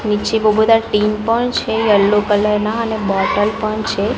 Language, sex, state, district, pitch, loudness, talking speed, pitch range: Gujarati, female, Gujarat, Gandhinagar, 215 Hz, -15 LUFS, 185 wpm, 210-225 Hz